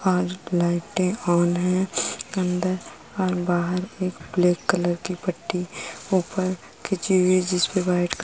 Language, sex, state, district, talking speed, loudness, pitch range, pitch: Hindi, female, Uttar Pradesh, Jalaun, 140 wpm, -24 LUFS, 175-185 Hz, 180 Hz